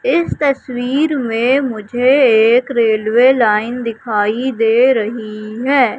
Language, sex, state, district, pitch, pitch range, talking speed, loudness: Hindi, female, Madhya Pradesh, Katni, 240 Hz, 220-260 Hz, 110 wpm, -14 LUFS